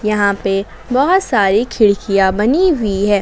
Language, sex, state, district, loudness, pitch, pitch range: Hindi, female, Jharkhand, Garhwa, -14 LUFS, 210 Hz, 200-250 Hz